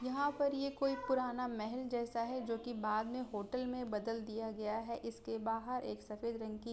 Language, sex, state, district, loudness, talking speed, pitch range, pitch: Hindi, female, Uttar Pradesh, Ghazipur, -40 LUFS, 220 wpm, 220-255 Hz, 235 Hz